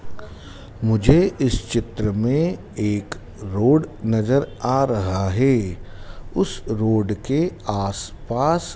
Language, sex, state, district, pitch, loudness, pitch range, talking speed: Hindi, male, Madhya Pradesh, Dhar, 110 Hz, -21 LUFS, 100-130 Hz, 95 wpm